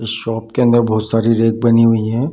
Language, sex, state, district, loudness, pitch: Hindi, male, Bihar, Darbhanga, -14 LUFS, 115 Hz